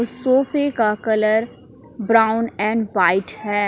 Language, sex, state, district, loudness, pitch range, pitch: Hindi, female, Jharkhand, Palamu, -19 LUFS, 210-235 Hz, 220 Hz